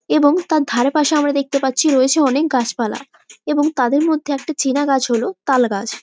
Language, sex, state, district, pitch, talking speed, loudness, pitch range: Bengali, female, West Bengal, Malda, 280 Hz, 180 wpm, -17 LUFS, 260-300 Hz